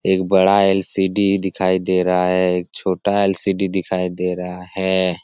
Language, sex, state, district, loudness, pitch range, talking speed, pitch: Hindi, male, Bihar, Jamui, -17 LUFS, 90-95 Hz, 160 wpm, 95 Hz